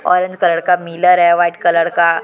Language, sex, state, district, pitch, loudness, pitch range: Hindi, female, Jharkhand, Deoghar, 175 Hz, -13 LUFS, 170-180 Hz